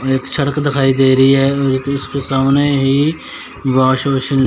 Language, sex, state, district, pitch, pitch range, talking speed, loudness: Hindi, male, Chandigarh, Chandigarh, 135 Hz, 135-140 Hz, 190 wpm, -14 LUFS